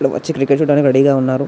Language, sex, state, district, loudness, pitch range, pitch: Telugu, male, Telangana, Nalgonda, -14 LUFS, 135-145 Hz, 140 Hz